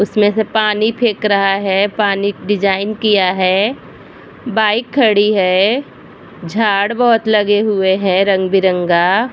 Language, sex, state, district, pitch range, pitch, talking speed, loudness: Hindi, female, Bihar, Vaishali, 195-220 Hz, 205 Hz, 130 wpm, -14 LUFS